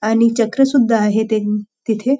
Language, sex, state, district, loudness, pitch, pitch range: Marathi, female, Maharashtra, Nagpur, -16 LUFS, 225 Hz, 215-240 Hz